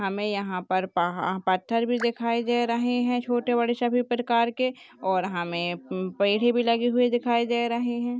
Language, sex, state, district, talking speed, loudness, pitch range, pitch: Hindi, female, Rajasthan, Churu, 185 wpm, -25 LUFS, 190-240 Hz, 235 Hz